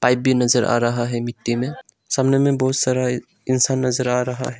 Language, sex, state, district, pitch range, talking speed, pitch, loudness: Hindi, male, Arunachal Pradesh, Longding, 120-130 Hz, 210 wpm, 125 Hz, -20 LUFS